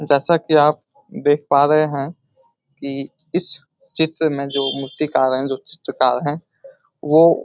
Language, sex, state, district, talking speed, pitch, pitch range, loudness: Hindi, male, Uttar Pradesh, Etah, 155 wpm, 145 Hz, 135-160 Hz, -18 LUFS